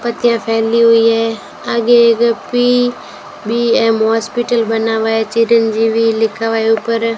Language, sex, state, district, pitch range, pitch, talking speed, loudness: Hindi, female, Rajasthan, Bikaner, 225-235 Hz, 230 Hz, 140 wpm, -13 LUFS